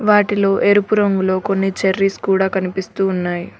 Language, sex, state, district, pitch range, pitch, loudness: Telugu, female, Telangana, Mahabubabad, 190-205 Hz, 195 Hz, -17 LUFS